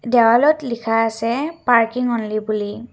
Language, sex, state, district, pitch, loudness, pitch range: Assamese, female, Assam, Kamrup Metropolitan, 235 Hz, -18 LUFS, 225-245 Hz